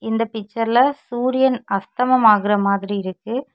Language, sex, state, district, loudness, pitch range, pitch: Tamil, female, Tamil Nadu, Kanyakumari, -19 LUFS, 205-250 Hz, 225 Hz